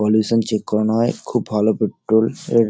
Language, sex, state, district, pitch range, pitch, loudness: Bengali, male, West Bengal, Dakshin Dinajpur, 105-115 Hz, 110 Hz, -19 LUFS